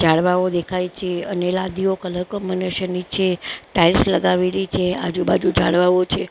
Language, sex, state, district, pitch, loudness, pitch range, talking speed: Gujarati, female, Maharashtra, Mumbai Suburban, 180 Hz, -20 LUFS, 170-185 Hz, 160 wpm